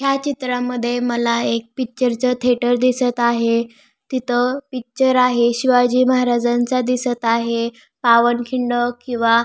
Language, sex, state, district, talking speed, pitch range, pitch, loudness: Marathi, female, Maharashtra, Pune, 115 wpm, 235-255 Hz, 245 Hz, -18 LUFS